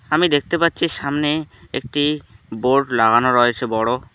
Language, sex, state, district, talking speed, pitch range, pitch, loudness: Bengali, male, West Bengal, Alipurduar, 130 wpm, 115-150 Hz, 125 Hz, -18 LUFS